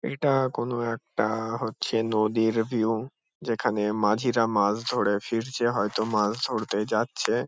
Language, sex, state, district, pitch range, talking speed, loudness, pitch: Bengali, male, West Bengal, Kolkata, 105-120 Hz, 135 wpm, -26 LUFS, 110 Hz